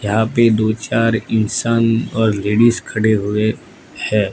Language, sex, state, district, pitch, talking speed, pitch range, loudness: Hindi, male, Gujarat, Gandhinagar, 110 Hz, 140 wpm, 105-115 Hz, -16 LUFS